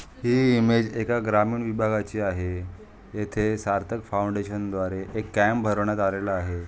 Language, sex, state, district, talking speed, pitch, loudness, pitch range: Marathi, male, Maharashtra, Aurangabad, 135 wpm, 105 Hz, -25 LUFS, 95-110 Hz